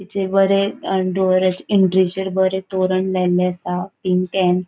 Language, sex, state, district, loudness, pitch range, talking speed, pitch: Konkani, female, Goa, North and South Goa, -18 LUFS, 185-190 Hz, 115 wpm, 185 Hz